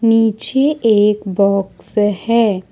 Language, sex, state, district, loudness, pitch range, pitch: Hindi, female, Jharkhand, Ranchi, -14 LUFS, 200-230 Hz, 210 Hz